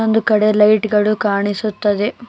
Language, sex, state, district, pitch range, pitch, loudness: Kannada, female, Karnataka, Bangalore, 210-215 Hz, 215 Hz, -15 LUFS